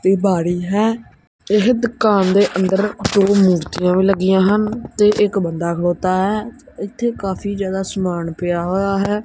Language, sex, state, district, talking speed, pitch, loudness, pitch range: Punjabi, male, Punjab, Kapurthala, 150 wpm, 195 Hz, -17 LUFS, 185-210 Hz